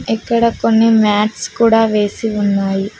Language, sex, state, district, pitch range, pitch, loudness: Telugu, female, Telangana, Mahabubabad, 205-225 Hz, 220 Hz, -14 LUFS